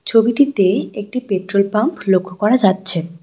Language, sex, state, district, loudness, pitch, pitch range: Bengali, female, West Bengal, Cooch Behar, -16 LUFS, 200 Hz, 190-225 Hz